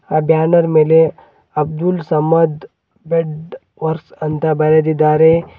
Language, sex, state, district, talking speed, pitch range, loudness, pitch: Kannada, male, Karnataka, Bidar, 95 wpm, 155-165 Hz, -15 LUFS, 160 Hz